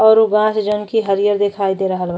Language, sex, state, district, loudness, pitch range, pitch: Bhojpuri, female, Uttar Pradesh, Ghazipur, -16 LUFS, 195-215 Hz, 205 Hz